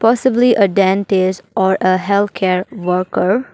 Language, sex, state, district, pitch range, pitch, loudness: English, female, Arunachal Pradesh, Papum Pare, 185-210 Hz, 195 Hz, -15 LUFS